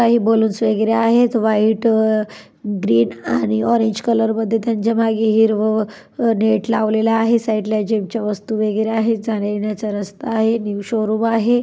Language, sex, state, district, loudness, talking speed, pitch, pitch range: Marathi, female, Maharashtra, Dhule, -17 LUFS, 145 wpm, 220 Hz, 215-225 Hz